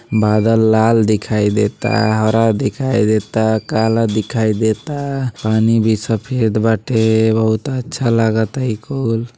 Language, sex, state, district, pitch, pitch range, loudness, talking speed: Bhojpuri, male, Uttar Pradesh, Gorakhpur, 110 Hz, 110-115 Hz, -16 LUFS, 120 wpm